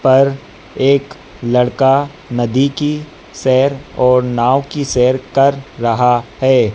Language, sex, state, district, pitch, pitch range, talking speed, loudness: Hindi, female, Madhya Pradesh, Dhar, 130 Hz, 125-140 Hz, 115 wpm, -14 LUFS